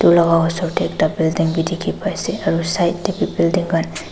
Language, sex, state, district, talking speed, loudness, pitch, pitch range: Nagamese, female, Nagaland, Dimapur, 205 wpm, -18 LUFS, 170 Hz, 165-175 Hz